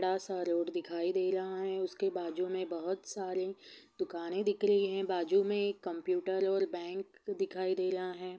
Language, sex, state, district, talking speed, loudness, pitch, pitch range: Hindi, female, Bihar, Sitamarhi, 195 wpm, -34 LUFS, 190 Hz, 185-200 Hz